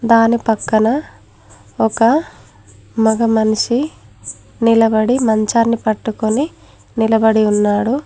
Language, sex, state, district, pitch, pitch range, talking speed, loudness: Telugu, female, Telangana, Mahabubabad, 225 Hz, 210-230 Hz, 75 wpm, -15 LUFS